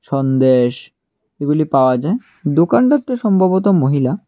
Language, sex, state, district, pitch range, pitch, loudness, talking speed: Bengali, male, Tripura, West Tripura, 135-195 Hz, 150 Hz, -15 LUFS, 110 wpm